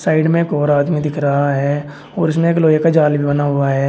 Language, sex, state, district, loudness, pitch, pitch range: Hindi, male, Uttar Pradesh, Shamli, -15 LUFS, 150 Hz, 145-160 Hz